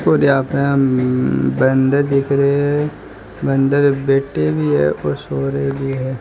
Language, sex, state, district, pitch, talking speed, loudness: Hindi, male, Rajasthan, Jaipur, 135 Hz, 165 wpm, -16 LUFS